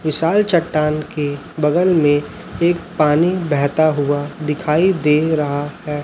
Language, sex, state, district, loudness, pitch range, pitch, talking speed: Hindi, male, Chhattisgarh, Raipur, -17 LUFS, 145-165 Hz, 150 Hz, 130 wpm